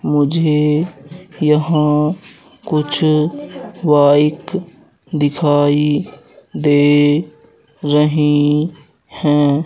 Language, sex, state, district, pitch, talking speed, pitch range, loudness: Hindi, male, Madhya Pradesh, Katni, 150 Hz, 50 wpm, 145-160 Hz, -15 LUFS